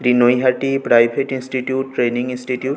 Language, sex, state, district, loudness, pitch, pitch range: Bengali, male, West Bengal, North 24 Parganas, -18 LUFS, 130 Hz, 125-130 Hz